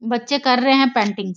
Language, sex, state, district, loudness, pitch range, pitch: Hindi, female, Bihar, Sitamarhi, -17 LUFS, 220-270 Hz, 245 Hz